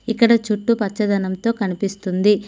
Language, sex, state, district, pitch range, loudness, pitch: Telugu, female, Telangana, Mahabubabad, 200-230 Hz, -19 LUFS, 210 Hz